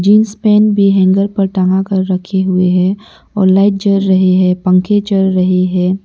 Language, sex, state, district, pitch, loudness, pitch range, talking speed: Hindi, male, Arunachal Pradesh, Lower Dibang Valley, 190 Hz, -12 LUFS, 185-200 Hz, 190 wpm